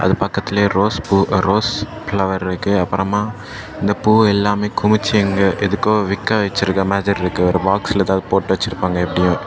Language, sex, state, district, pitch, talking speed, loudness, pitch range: Tamil, male, Tamil Nadu, Kanyakumari, 100 Hz, 150 wpm, -17 LUFS, 95-105 Hz